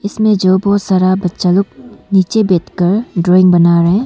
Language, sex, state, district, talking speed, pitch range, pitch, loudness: Hindi, female, Arunachal Pradesh, Longding, 175 wpm, 180-200 Hz, 185 Hz, -12 LUFS